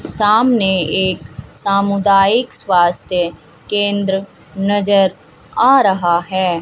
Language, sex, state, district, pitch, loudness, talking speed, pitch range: Hindi, female, Haryana, Jhajjar, 195 Hz, -15 LUFS, 80 wpm, 180-205 Hz